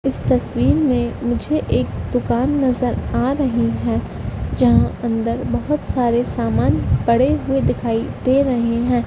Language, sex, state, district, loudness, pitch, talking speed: Hindi, female, Madhya Pradesh, Dhar, -19 LUFS, 235 Hz, 140 wpm